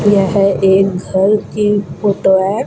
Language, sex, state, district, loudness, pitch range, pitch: Hindi, female, Rajasthan, Bikaner, -13 LUFS, 190-205 Hz, 195 Hz